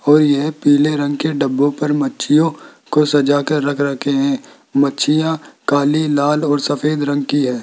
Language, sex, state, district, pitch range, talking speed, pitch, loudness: Hindi, male, Rajasthan, Jaipur, 140-150 Hz, 175 wpm, 145 Hz, -16 LUFS